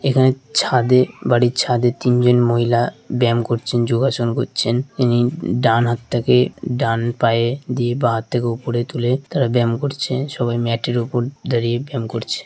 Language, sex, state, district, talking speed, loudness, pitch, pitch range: Bengali, male, West Bengal, Dakshin Dinajpur, 130 wpm, -18 LUFS, 120 Hz, 120-125 Hz